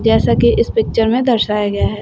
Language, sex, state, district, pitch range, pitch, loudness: Hindi, female, Uttar Pradesh, Shamli, 210-245 Hz, 225 Hz, -14 LUFS